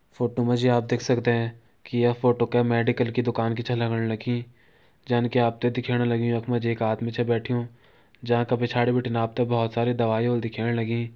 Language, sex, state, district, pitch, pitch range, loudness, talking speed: Garhwali, male, Uttarakhand, Uttarkashi, 120 Hz, 115-120 Hz, -25 LUFS, 220 wpm